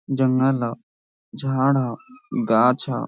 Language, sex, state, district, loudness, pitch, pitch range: Hindi, male, Jharkhand, Sahebganj, -21 LUFS, 130 Hz, 120-135 Hz